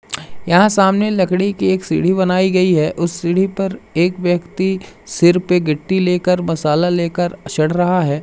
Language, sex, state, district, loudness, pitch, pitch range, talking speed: Hindi, male, Madhya Pradesh, Umaria, -16 LUFS, 180 Hz, 170-190 Hz, 170 wpm